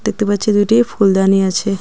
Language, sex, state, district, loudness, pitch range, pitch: Bengali, female, West Bengal, Cooch Behar, -14 LUFS, 195-215 Hz, 205 Hz